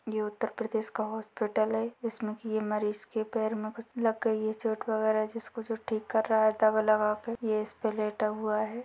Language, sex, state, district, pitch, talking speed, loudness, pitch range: Hindi, female, Uttar Pradesh, Ghazipur, 220 Hz, 230 wpm, -31 LUFS, 215-225 Hz